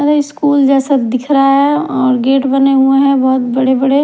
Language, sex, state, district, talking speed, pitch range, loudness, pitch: Hindi, female, Haryana, Charkhi Dadri, 205 wpm, 260-285 Hz, -11 LUFS, 275 Hz